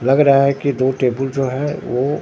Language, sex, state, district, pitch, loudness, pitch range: Hindi, male, Bihar, Katihar, 135 Hz, -17 LUFS, 130-140 Hz